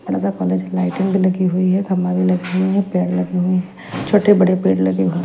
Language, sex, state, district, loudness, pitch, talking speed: Hindi, female, Delhi, New Delhi, -17 LUFS, 180 Hz, 230 wpm